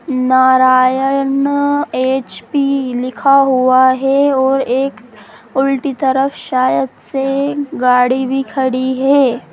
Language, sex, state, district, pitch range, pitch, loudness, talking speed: Hindi, female, Bihar, Sitamarhi, 255-275 Hz, 265 Hz, -14 LUFS, 100 wpm